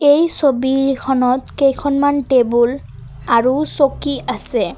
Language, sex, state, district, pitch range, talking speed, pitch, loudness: Assamese, female, Assam, Kamrup Metropolitan, 250-285 Hz, 90 wpm, 270 Hz, -16 LUFS